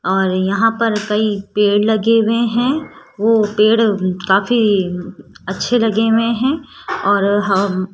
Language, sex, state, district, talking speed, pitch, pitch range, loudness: Hindi, female, Rajasthan, Jaipur, 135 wpm, 210 Hz, 195-225 Hz, -16 LUFS